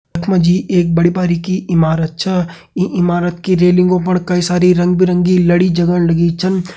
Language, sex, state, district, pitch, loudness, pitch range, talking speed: Hindi, male, Uttarakhand, Uttarkashi, 180 Hz, -13 LUFS, 175-185 Hz, 185 wpm